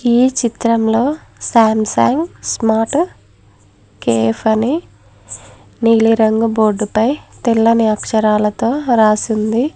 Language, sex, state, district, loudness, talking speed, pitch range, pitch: Telugu, female, Telangana, Mahabubabad, -15 LUFS, 85 wpm, 215-235 Hz, 225 Hz